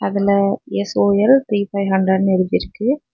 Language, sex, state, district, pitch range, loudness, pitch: Tamil, female, Tamil Nadu, Kanyakumari, 190-205 Hz, -17 LUFS, 200 Hz